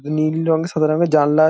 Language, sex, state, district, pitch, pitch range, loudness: Bengali, male, West Bengal, Jalpaiguri, 155 Hz, 155-160 Hz, -18 LUFS